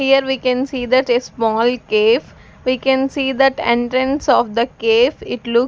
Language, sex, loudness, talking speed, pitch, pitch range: English, female, -16 LUFS, 190 wpm, 260 Hz, 245-270 Hz